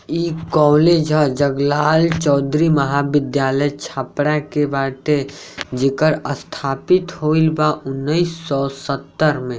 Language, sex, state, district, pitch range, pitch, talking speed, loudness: Bhojpuri, male, Bihar, Saran, 140-155 Hz, 145 Hz, 105 wpm, -18 LUFS